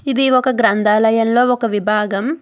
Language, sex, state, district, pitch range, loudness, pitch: Telugu, female, Telangana, Hyderabad, 210-255 Hz, -15 LUFS, 230 Hz